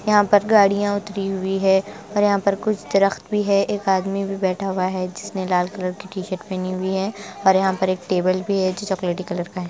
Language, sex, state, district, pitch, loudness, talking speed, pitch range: Hindi, female, Bihar, West Champaran, 195 Hz, -21 LUFS, 240 wpm, 185-200 Hz